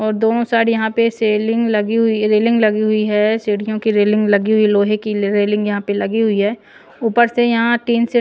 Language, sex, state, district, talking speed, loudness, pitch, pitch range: Hindi, female, Punjab, Pathankot, 220 wpm, -16 LUFS, 215 Hz, 210-230 Hz